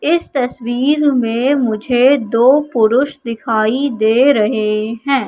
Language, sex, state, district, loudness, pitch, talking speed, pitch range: Hindi, female, Madhya Pradesh, Katni, -14 LUFS, 250 Hz, 115 wpm, 225-275 Hz